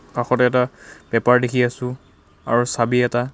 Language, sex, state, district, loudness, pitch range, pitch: Assamese, male, Assam, Kamrup Metropolitan, -19 LUFS, 115-125 Hz, 120 Hz